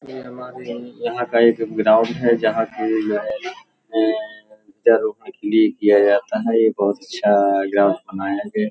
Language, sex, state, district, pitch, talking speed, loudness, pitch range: Hindi, male, Uttar Pradesh, Hamirpur, 115 Hz, 140 wpm, -18 LUFS, 105-125 Hz